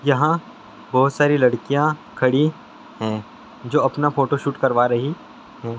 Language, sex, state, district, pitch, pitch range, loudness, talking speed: Hindi, male, Andhra Pradesh, Guntur, 140 Hz, 125-145 Hz, -20 LUFS, 135 wpm